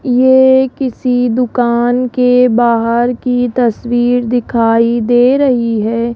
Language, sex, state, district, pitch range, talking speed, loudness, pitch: Hindi, female, Rajasthan, Jaipur, 235-250 Hz, 105 wpm, -12 LUFS, 245 Hz